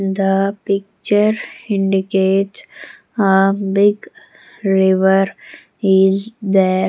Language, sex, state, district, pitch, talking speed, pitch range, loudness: English, female, Punjab, Pathankot, 195 Hz, 70 wpm, 195-205 Hz, -16 LUFS